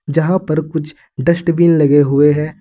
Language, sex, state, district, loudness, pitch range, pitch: Hindi, male, Uttar Pradesh, Saharanpur, -14 LUFS, 145-170 Hz, 155 Hz